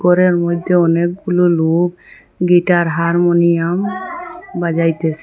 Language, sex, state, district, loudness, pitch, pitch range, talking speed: Bengali, female, Assam, Hailakandi, -15 LUFS, 175 Hz, 170-180 Hz, 80 wpm